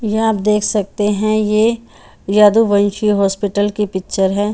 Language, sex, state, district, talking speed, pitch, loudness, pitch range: Hindi, female, Haryana, Charkhi Dadri, 160 wpm, 210 Hz, -15 LUFS, 205-215 Hz